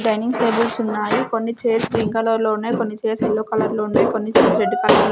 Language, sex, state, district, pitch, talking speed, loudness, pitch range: Telugu, female, Andhra Pradesh, Sri Satya Sai, 225 Hz, 245 wpm, -19 LUFS, 220-230 Hz